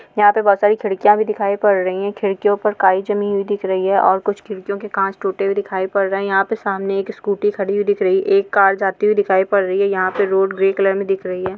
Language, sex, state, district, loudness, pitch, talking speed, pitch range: Hindi, female, Goa, North and South Goa, -17 LUFS, 200 Hz, 285 wpm, 195-205 Hz